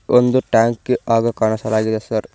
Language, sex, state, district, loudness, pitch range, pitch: Kannada, male, Karnataka, Koppal, -17 LUFS, 110-120 Hz, 115 Hz